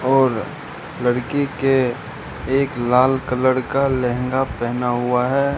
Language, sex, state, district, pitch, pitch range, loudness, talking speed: Hindi, male, Rajasthan, Bikaner, 130 Hz, 125-135 Hz, -19 LUFS, 120 wpm